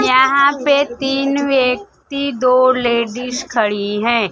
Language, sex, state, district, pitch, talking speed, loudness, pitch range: Hindi, female, Bihar, Kaimur, 255 Hz, 110 wpm, -15 LUFS, 235-275 Hz